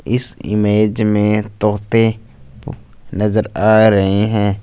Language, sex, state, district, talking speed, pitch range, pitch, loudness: Hindi, male, Punjab, Fazilka, 105 wpm, 105-110 Hz, 105 Hz, -15 LUFS